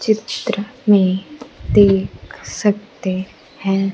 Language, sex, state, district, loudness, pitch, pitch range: Hindi, female, Bihar, Kaimur, -18 LUFS, 200 Hz, 195-220 Hz